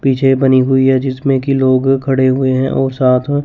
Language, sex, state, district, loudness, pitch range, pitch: Hindi, male, Chandigarh, Chandigarh, -13 LUFS, 130-135 Hz, 130 Hz